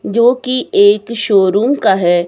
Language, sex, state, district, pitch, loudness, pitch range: Hindi, female, Himachal Pradesh, Shimla, 235 Hz, -12 LUFS, 195-255 Hz